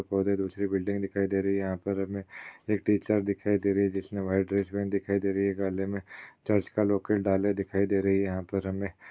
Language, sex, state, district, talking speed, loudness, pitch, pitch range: Hindi, male, Uttar Pradesh, Jalaun, 245 wpm, -29 LUFS, 100 Hz, 95-100 Hz